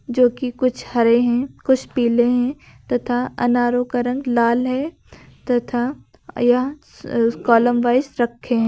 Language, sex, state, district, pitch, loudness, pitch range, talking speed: Hindi, female, Uttar Pradesh, Lucknow, 245 Hz, -19 LUFS, 240-255 Hz, 140 wpm